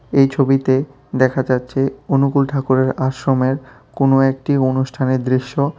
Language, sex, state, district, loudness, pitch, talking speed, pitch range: Bengali, male, Tripura, West Tripura, -17 LUFS, 135 Hz, 115 wpm, 130-135 Hz